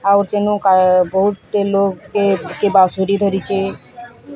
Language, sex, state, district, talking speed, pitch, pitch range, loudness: Odia, female, Odisha, Sambalpur, 125 wpm, 200 Hz, 190-205 Hz, -16 LUFS